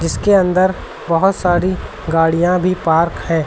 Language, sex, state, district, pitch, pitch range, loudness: Hindi, male, Uttar Pradesh, Lucknow, 175 Hz, 165-185 Hz, -15 LUFS